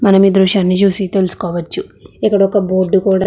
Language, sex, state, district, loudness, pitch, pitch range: Telugu, female, Andhra Pradesh, Chittoor, -13 LUFS, 195 Hz, 185-195 Hz